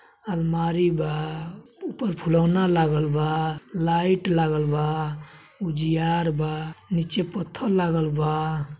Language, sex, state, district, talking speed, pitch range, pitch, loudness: Bhojpuri, male, Uttar Pradesh, Gorakhpur, 100 wpm, 155-175 Hz, 165 Hz, -24 LUFS